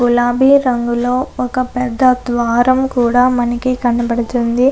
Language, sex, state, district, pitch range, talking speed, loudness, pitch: Telugu, female, Andhra Pradesh, Anantapur, 240-255 Hz, 100 wpm, -14 LUFS, 245 Hz